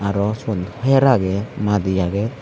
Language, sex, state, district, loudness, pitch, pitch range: Chakma, male, Tripura, Unakoti, -19 LUFS, 105 Hz, 100-115 Hz